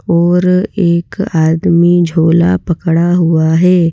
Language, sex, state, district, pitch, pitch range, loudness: Hindi, female, Madhya Pradesh, Bhopal, 170 Hz, 165-180 Hz, -11 LUFS